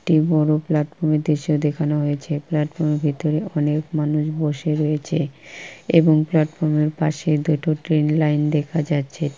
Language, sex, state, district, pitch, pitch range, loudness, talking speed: Bengali, female, West Bengal, Purulia, 155 Hz, 150-155 Hz, -20 LUFS, 155 wpm